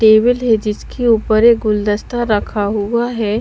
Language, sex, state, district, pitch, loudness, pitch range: Hindi, female, Bihar, Patna, 220 Hz, -15 LUFS, 210-235 Hz